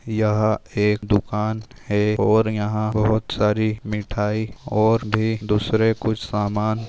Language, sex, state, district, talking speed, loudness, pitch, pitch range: Hindi, male, Maharashtra, Nagpur, 130 wpm, -21 LUFS, 110 Hz, 105-110 Hz